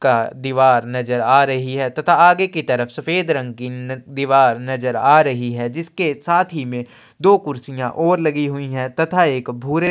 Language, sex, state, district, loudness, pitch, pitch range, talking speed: Hindi, male, Chhattisgarh, Sukma, -17 LUFS, 135 Hz, 125-160 Hz, 195 wpm